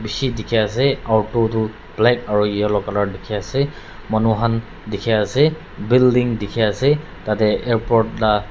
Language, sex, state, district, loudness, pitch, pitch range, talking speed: Nagamese, male, Nagaland, Dimapur, -19 LUFS, 110 Hz, 105-120 Hz, 150 wpm